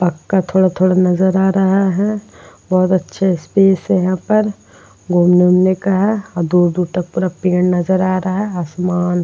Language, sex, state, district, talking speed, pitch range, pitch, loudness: Hindi, female, Uttar Pradesh, Varanasi, 190 wpm, 180-190 Hz, 185 Hz, -15 LUFS